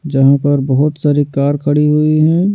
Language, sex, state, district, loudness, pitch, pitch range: Hindi, male, Bihar, Patna, -13 LUFS, 145 Hz, 140-155 Hz